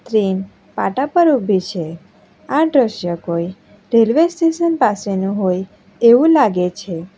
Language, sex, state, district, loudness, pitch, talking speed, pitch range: Gujarati, female, Gujarat, Valsad, -16 LUFS, 205 Hz, 125 wpm, 185-270 Hz